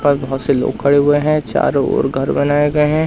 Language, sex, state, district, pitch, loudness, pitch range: Hindi, male, Madhya Pradesh, Katni, 145 Hz, -15 LUFS, 140-150 Hz